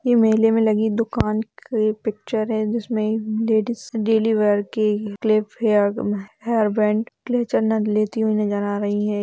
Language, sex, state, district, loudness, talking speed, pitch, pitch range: Hindi, female, Bihar, Sitamarhi, -21 LUFS, 160 wpm, 220 Hz, 210-225 Hz